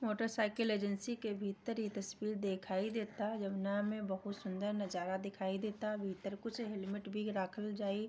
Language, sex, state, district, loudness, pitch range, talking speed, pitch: Bhojpuri, female, Bihar, Gopalganj, -40 LUFS, 195-215 Hz, 165 wpm, 205 Hz